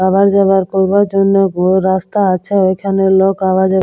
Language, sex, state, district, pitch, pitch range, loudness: Bengali, female, West Bengal, Purulia, 190 Hz, 190-195 Hz, -12 LUFS